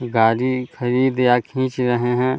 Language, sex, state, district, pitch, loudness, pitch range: Hindi, male, Bihar, Vaishali, 125 Hz, -19 LUFS, 120-130 Hz